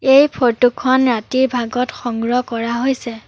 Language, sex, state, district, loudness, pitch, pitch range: Assamese, female, Assam, Sonitpur, -17 LUFS, 245 Hz, 235-260 Hz